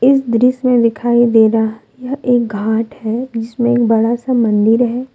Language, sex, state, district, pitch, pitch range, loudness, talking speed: Hindi, female, Jharkhand, Deoghar, 235 Hz, 225-250 Hz, -14 LUFS, 185 wpm